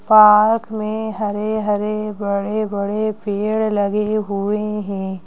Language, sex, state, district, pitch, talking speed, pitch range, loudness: Hindi, female, Madhya Pradesh, Bhopal, 210 Hz, 115 wpm, 205-215 Hz, -19 LUFS